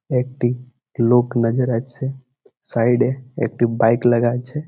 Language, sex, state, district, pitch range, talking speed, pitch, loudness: Bengali, male, West Bengal, Malda, 120-130 Hz, 140 wpm, 120 Hz, -19 LUFS